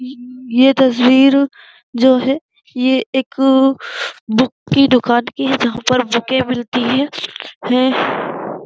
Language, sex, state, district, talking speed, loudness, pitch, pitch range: Hindi, female, Uttar Pradesh, Jyotiba Phule Nagar, 110 wpm, -15 LUFS, 260 Hz, 250-270 Hz